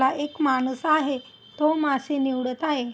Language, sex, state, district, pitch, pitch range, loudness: Marathi, female, Maharashtra, Aurangabad, 275 Hz, 260-300 Hz, -24 LUFS